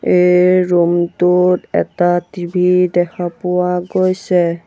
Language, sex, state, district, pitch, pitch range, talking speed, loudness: Assamese, male, Assam, Sonitpur, 180 Hz, 175-180 Hz, 90 wpm, -14 LUFS